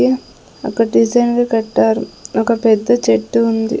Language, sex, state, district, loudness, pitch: Telugu, female, Andhra Pradesh, Sri Satya Sai, -15 LUFS, 225 Hz